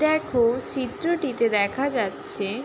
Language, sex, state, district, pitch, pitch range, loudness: Bengali, female, West Bengal, Jalpaiguri, 255 Hz, 230-290 Hz, -24 LUFS